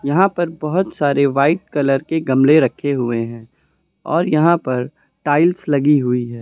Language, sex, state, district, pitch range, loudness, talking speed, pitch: Hindi, male, Uttar Pradesh, Lucknow, 130-160 Hz, -17 LUFS, 170 wpm, 145 Hz